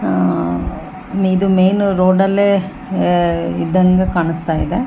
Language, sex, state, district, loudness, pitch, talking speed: Kannada, female, Karnataka, Bellary, -15 LUFS, 185 Hz, 100 wpm